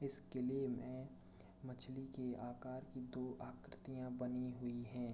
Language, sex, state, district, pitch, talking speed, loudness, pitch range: Hindi, male, Uttar Pradesh, Jalaun, 125 Hz, 140 wpm, -45 LUFS, 125-130 Hz